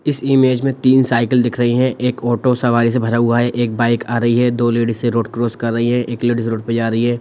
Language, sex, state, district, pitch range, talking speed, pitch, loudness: Hindi, male, Bihar, Sitamarhi, 115-125 Hz, 285 wpm, 120 Hz, -16 LUFS